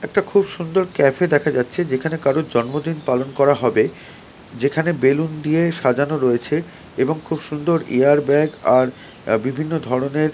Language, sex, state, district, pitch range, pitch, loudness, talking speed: Bengali, male, West Bengal, North 24 Parganas, 130-165 Hz, 150 Hz, -19 LUFS, 145 wpm